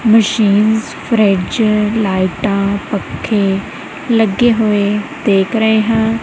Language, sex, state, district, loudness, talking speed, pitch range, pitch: Punjabi, female, Punjab, Kapurthala, -14 LUFS, 85 wpm, 200-225 Hz, 215 Hz